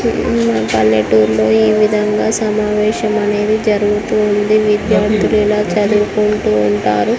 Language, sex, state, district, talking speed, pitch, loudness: Telugu, female, Andhra Pradesh, Srikakulam, 100 wpm, 210 Hz, -13 LUFS